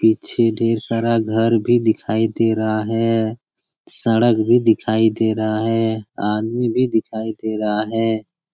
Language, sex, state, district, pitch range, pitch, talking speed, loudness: Hindi, male, Bihar, Jamui, 110-115 Hz, 110 Hz, 145 wpm, -18 LUFS